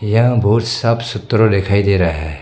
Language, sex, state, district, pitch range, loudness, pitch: Hindi, male, Arunachal Pradesh, Longding, 100-115 Hz, -15 LUFS, 105 Hz